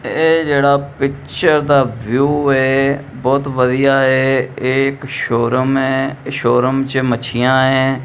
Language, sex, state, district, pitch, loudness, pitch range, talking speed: Punjabi, male, Punjab, Kapurthala, 135 Hz, -15 LUFS, 130-140 Hz, 135 wpm